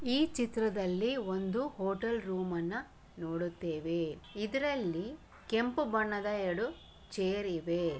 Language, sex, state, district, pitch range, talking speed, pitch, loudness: Kannada, female, Karnataka, Bellary, 175-235 Hz, 100 wpm, 200 Hz, -35 LUFS